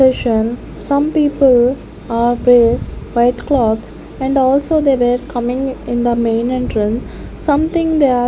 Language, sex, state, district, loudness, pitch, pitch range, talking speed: English, female, Chandigarh, Chandigarh, -15 LUFS, 245 Hz, 235-275 Hz, 150 wpm